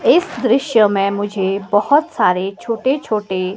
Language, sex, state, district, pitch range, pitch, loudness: Hindi, female, Himachal Pradesh, Shimla, 195-235 Hz, 205 Hz, -16 LUFS